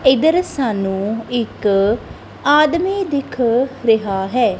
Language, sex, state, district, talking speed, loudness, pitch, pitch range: Punjabi, female, Punjab, Kapurthala, 90 wpm, -17 LUFS, 245 Hz, 210-285 Hz